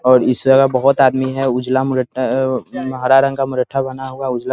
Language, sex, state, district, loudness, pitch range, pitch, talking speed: Hindi, male, Bihar, Muzaffarpur, -16 LUFS, 130-135 Hz, 130 Hz, 240 wpm